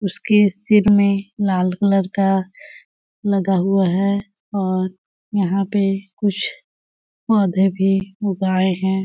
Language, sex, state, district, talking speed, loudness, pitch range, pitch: Hindi, female, Chhattisgarh, Balrampur, 115 wpm, -19 LUFS, 190-200 Hz, 195 Hz